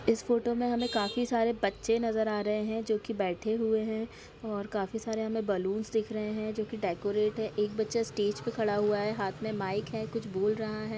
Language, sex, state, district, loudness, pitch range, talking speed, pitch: Hindi, female, Bihar, Gaya, -31 LUFS, 210-225 Hz, 235 wpm, 220 Hz